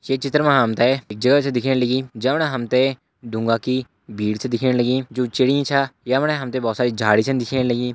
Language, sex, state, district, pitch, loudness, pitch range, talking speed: Hindi, male, Uttarakhand, Uttarkashi, 130 Hz, -20 LUFS, 120-135 Hz, 205 wpm